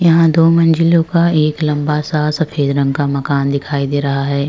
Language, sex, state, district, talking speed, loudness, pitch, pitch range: Hindi, female, Uttar Pradesh, Jyotiba Phule Nagar, 185 wpm, -14 LUFS, 150 Hz, 140-165 Hz